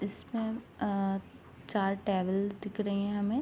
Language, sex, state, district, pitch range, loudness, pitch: Hindi, female, Uttar Pradesh, Ghazipur, 195-210 Hz, -33 LUFS, 200 Hz